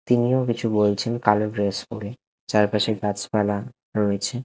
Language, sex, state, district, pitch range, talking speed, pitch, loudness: Bengali, male, Odisha, Khordha, 105-120 Hz, 160 wpm, 105 Hz, -23 LUFS